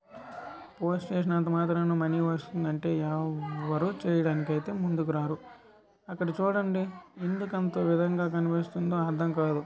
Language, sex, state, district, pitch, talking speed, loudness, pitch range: Telugu, male, Andhra Pradesh, Krishna, 170 Hz, 110 wpm, -30 LUFS, 160-185 Hz